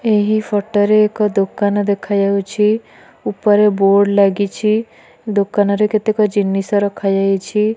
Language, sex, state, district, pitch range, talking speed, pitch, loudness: Odia, female, Odisha, Malkangiri, 200-215 Hz, 115 wpm, 205 Hz, -15 LUFS